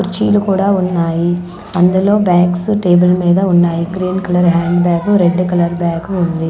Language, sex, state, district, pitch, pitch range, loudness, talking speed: Telugu, female, Andhra Pradesh, Manyam, 180 Hz, 175-190 Hz, -13 LUFS, 150 wpm